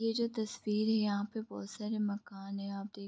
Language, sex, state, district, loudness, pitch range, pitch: Hindi, female, Bihar, Vaishali, -36 LUFS, 200-220 Hz, 210 Hz